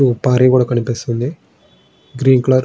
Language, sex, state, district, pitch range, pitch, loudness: Telugu, male, Andhra Pradesh, Srikakulam, 120-130 Hz, 125 Hz, -15 LUFS